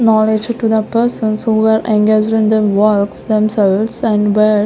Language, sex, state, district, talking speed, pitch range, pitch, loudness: English, female, Maharashtra, Gondia, 165 wpm, 215-220 Hz, 215 Hz, -13 LUFS